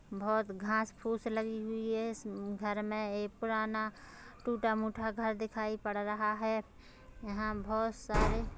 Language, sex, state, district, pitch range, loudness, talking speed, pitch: Hindi, female, Chhattisgarh, Kabirdham, 210-220 Hz, -36 LUFS, 145 wpm, 220 Hz